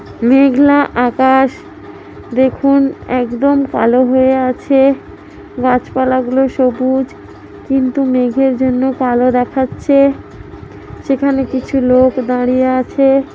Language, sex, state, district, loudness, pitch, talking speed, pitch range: Bengali, female, West Bengal, Jhargram, -13 LUFS, 260 Hz, 85 wpm, 255-270 Hz